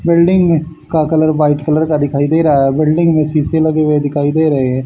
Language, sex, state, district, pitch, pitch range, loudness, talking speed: Hindi, male, Haryana, Charkhi Dadri, 155 Hz, 145-160 Hz, -13 LUFS, 245 wpm